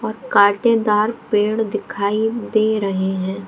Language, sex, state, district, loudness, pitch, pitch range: Hindi, female, Bihar, Jahanabad, -18 LUFS, 210 Hz, 200-225 Hz